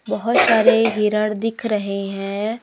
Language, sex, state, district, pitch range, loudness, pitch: Hindi, male, Madhya Pradesh, Umaria, 200-225 Hz, -18 LUFS, 210 Hz